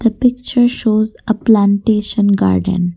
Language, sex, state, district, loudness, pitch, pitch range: English, female, Assam, Kamrup Metropolitan, -14 LUFS, 220 Hz, 200-235 Hz